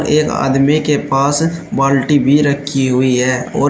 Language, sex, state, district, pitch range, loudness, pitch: Hindi, male, Uttar Pradesh, Shamli, 135-150 Hz, -14 LUFS, 140 Hz